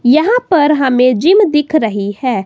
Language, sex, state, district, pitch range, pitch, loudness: Hindi, female, Himachal Pradesh, Shimla, 250-320 Hz, 290 Hz, -12 LUFS